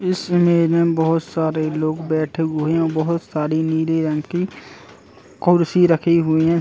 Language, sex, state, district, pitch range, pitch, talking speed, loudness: Hindi, male, Uttar Pradesh, Jalaun, 160-170 Hz, 165 Hz, 165 wpm, -19 LUFS